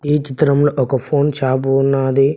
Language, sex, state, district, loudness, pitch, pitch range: Telugu, male, Telangana, Mahabubabad, -16 LUFS, 135 Hz, 135-145 Hz